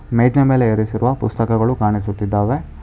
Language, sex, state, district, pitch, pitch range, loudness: Kannada, male, Karnataka, Bangalore, 110 Hz, 105-125 Hz, -17 LUFS